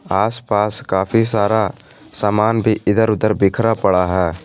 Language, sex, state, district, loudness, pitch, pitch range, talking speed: Hindi, male, Jharkhand, Garhwa, -16 LUFS, 105 Hz, 95-110 Hz, 150 wpm